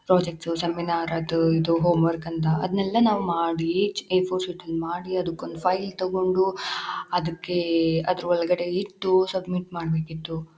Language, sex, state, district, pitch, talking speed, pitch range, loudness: Kannada, female, Karnataka, Shimoga, 175 Hz, 125 wpm, 165-185 Hz, -25 LUFS